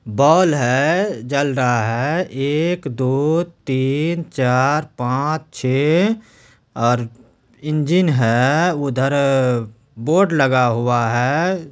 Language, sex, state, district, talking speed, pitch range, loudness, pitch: Hindi, male, Bihar, Supaul, 95 wpm, 125-160 Hz, -18 LUFS, 140 Hz